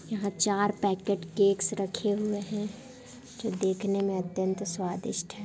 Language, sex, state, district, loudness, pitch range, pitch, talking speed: Hindi, female, Bihar, Darbhanga, -30 LUFS, 190-210 Hz, 200 Hz, 145 wpm